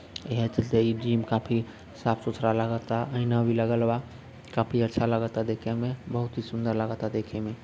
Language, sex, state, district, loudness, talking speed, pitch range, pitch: Bhojpuri, male, Bihar, Sitamarhi, -28 LUFS, 165 wpm, 115-120 Hz, 115 Hz